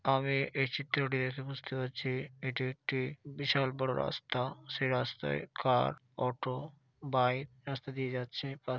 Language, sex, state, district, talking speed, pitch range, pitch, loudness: Bengali, male, West Bengal, Dakshin Dinajpur, 135 wpm, 130-140 Hz, 135 Hz, -35 LUFS